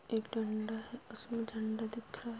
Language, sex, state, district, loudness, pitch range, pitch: Hindi, female, Uttar Pradesh, Budaun, -40 LUFS, 220-235 Hz, 225 Hz